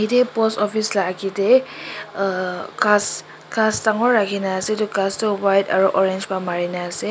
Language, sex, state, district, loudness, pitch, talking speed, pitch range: Nagamese, male, Nagaland, Kohima, -20 LUFS, 200 Hz, 175 wpm, 190-215 Hz